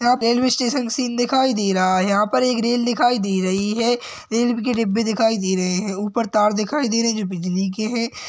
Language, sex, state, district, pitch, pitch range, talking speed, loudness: Hindi, male, Chhattisgarh, Rajnandgaon, 230 Hz, 205-245 Hz, 240 wpm, -20 LUFS